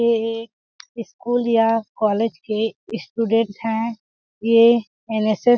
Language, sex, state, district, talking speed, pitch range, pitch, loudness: Hindi, female, Chhattisgarh, Balrampur, 120 wpm, 220-230 Hz, 225 Hz, -20 LUFS